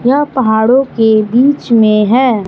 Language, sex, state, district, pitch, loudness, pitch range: Hindi, male, Bihar, Kaimur, 240 Hz, -10 LUFS, 220-260 Hz